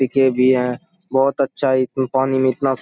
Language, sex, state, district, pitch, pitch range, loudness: Hindi, male, Bihar, Saharsa, 130 Hz, 130-135 Hz, -18 LUFS